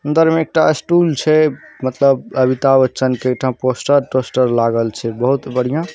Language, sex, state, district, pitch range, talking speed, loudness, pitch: Hindi, male, Bihar, Saharsa, 125-150 Hz, 160 wpm, -15 LUFS, 130 Hz